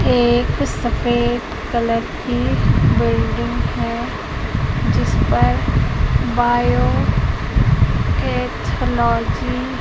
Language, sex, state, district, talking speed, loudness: Hindi, female, Madhya Pradesh, Katni, 60 wpm, -18 LUFS